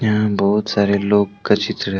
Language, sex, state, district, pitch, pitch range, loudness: Hindi, male, Jharkhand, Deoghar, 100 Hz, 100-105 Hz, -17 LUFS